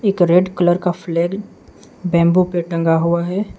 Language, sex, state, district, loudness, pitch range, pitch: Hindi, male, Arunachal Pradesh, Lower Dibang Valley, -16 LUFS, 170-185 Hz, 175 Hz